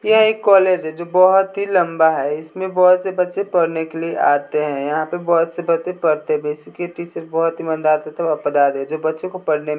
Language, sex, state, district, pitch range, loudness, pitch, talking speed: Hindi, male, Bihar, West Champaran, 155-180 Hz, -18 LUFS, 165 Hz, 235 wpm